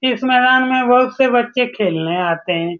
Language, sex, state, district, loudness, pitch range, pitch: Hindi, male, Bihar, Saran, -15 LUFS, 175-255 Hz, 250 Hz